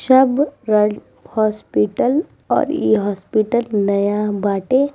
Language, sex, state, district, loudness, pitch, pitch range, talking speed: Bhojpuri, female, Bihar, East Champaran, -18 LUFS, 215 Hz, 205-260 Hz, 95 wpm